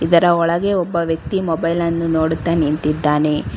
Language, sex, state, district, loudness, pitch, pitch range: Kannada, female, Karnataka, Bangalore, -17 LUFS, 165 Hz, 155-170 Hz